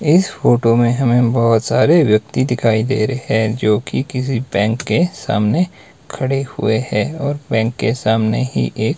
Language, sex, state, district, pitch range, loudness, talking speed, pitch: Hindi, male, Himachal Pradesh, Shimla, 110-135 Hz, -16 LUFS, 175 wpm, 120 Hz